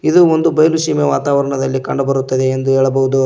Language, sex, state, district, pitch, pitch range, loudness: Kannada, male, Karnataka, Koppal, 135 Hz, 135-155 Hz, -14 LUFS